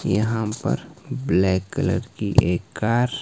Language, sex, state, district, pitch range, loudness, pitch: Hindi, male, Himachal Pradesh, Shimla, 95-115 Hz, -22 LUFS, 105 Hz